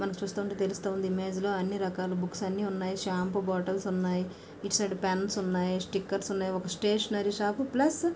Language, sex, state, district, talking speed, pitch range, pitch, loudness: Telugu, female, Andhra Pradesh, Srikakulam, 185 wpm, 185-200 Hz, 195 Hz, -31 LUFS